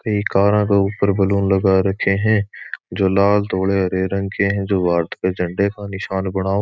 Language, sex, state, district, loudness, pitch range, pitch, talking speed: Marwari, male, Rajasthan, Churu, -18 LUFS, 95-100 Hz, 100 Hz, 210 wpm